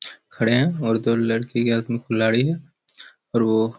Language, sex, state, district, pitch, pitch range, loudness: Hindi, male, Chhattisgarh, Raigarh, 115 Hz, 115-125 Hz, -21 LUFS